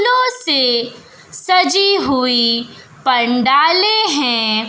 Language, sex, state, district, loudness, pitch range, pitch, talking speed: Hindi, female, Bihar, West Champaran, -14 LUFS, 240-385 Hz, 270 Hz, 75 wpm